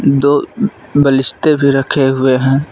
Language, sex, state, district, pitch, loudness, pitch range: Hindi, male, Jharkhand, Palamu, 140 Hz, -13 LUFS, 135-145 Hz